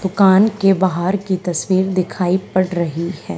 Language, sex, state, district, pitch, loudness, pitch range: Hindi, female, Haryana, Charkhi Dadri, 185 Hz, -17 LUFS, 180-195 Hz